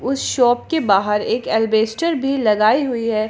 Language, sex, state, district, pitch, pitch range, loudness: Hindi, female, Jharkhand, Palamu, 230 Hz, 215-270 Hz, -17 LUFS